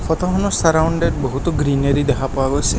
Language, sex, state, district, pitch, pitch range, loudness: Assamese, male, Assam, Kamrup Metropolitan, 145 Hz, 135-165 Hz, -18 LUFS